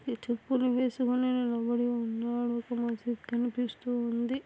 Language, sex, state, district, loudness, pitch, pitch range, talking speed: Telugu, female, Andhra Pradesh, Anantapur, -31 LUFS, 240 Hz, 235-250 Hz, 120 wpm